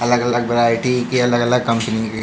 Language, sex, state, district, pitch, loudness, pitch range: Hindi, male, Uttar Pradesh, Jalaun, 120 Hz, -17 LUFS, 115-120 Hz